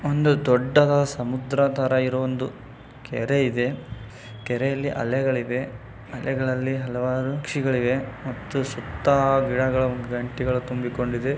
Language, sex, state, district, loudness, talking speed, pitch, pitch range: Kannada, male, Karnataka, Bijapur, -24 LUFS, 95 wpm, 130 Hz, 125-135 Hz